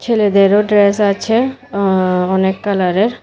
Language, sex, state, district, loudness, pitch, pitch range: Bengali, female, Tripura, West Tripura, -14 LUFS, 200 Hz, 190-220 Hz